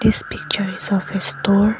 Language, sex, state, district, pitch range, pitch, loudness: English, female, Arunachal Pradesh, Lower Dibang Valley, 185-205 Hz, 195 Hz, -20 LUFS